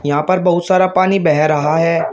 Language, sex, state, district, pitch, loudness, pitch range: Hindi, male, Uttar Pradesh, Shamli, 165 Hz, -14 LUFS, 155-185 Hz